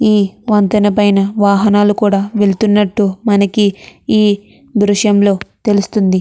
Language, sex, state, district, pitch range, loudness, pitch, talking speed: Telugu, female, Andhra Pradesh, Chittoor, 200-210 Hz, -13 LUFS, 205 Hz, 95 wpm